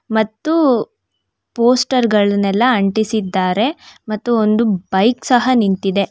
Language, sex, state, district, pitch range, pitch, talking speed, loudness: Kannada, female, Karnataka, Bangalore, 200-245 Hz, 220 Hz, 90 wpm, -15 LUFS